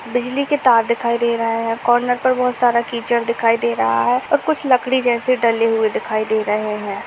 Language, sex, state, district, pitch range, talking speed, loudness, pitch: Hindi, female, Uttar Pradesh, Jalaun, 230-250 Hz, 245 wpm, -17 LUFS, 235 Hz